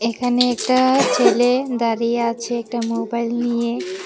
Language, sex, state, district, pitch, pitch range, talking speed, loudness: Bengali, female, Tripura, West Tripura, 235 Hz, 235-250 Hz, 120 wpm, -19 LUFS